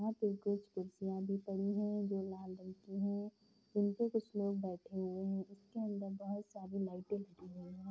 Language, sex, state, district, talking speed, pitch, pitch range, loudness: Hindi, female, Bihar, Darbhanga, 195 wpm, 200 Hz, 190-205 Hz, -41 LUFS